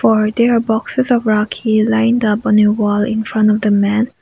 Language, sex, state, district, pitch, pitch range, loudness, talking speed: English, female, Nagaland, Kohima, 220 Hz, 210-230 Hz, -14 LUFS, 200 wpm